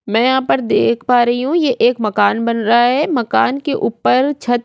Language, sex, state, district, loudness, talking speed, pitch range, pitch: Hindi, female, Chhattisgarh, Korba, -15 LUFS, 230 wpm, 230-260 Hz, 245 Hz